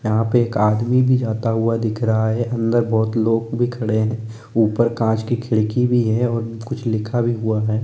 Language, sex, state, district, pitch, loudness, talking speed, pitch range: Hindi, male, Chhattisgarh, Korba, 115 Hz, -19 LUFS, 220 wpm, 110-120 Hz